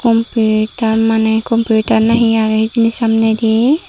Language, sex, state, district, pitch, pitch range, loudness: Chakma, female, Tripura, Dhalai, 225 Hz, 220-230 Hz, -13 LUFS